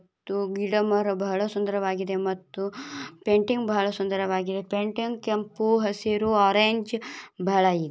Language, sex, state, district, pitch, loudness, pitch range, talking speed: Kannada, female, Karnataka, Bellary, 205 Hz, -26 LUFS, 195-215 Hz, 105 wpm